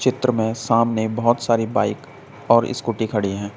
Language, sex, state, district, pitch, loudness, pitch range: Hindi, male, Uttar Pradesh, Saharanpur, 115 Hz, -20 LUFS, 110-120 Hz